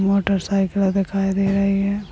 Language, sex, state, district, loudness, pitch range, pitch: Hindi, female, Rajasthan, Churu, -20 LUFS, 195-200 Hz, 195 Hz